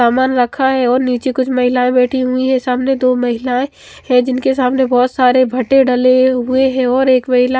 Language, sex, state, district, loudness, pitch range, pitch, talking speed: Hindi, female, Chandigarh, Chandigarh, -13 LUFS, 250-260 Hz, 255 Hz, 190 wpm